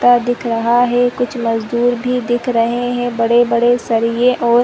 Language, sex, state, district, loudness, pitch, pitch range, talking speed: Hindi, female, Chhattisgarh, Rajnandgaon, -15 LUFS, 240 Hz, 235-245 Hz, 180 wpm